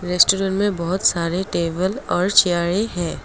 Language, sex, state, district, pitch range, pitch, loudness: Hindi, female, Assam, Kamrup Metropolitan, 170-195 Hz, 180 Hz, -19 LUFS